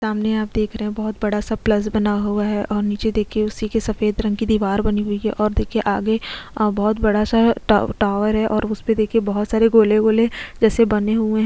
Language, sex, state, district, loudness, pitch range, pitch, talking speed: Hindi, female, Uttar Pradesh, Jyotiba Phule Nagar, -19 LUFS, 210-220 Hz, 215 Hz, 245 wpm